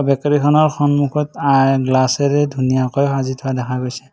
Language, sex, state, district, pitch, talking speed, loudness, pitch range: Assamese, male, Assam, Kamrup Metropolitan, 135 Hz, 160 wpm, -16 LUFS, 130-145 Hz